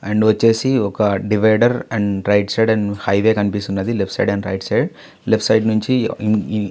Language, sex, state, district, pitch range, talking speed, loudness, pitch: Telugu, male, Andhra Pradesh, Visakhapatnam, 100-110 Hz, 160 wpm, -17 LUFS, 105 Hz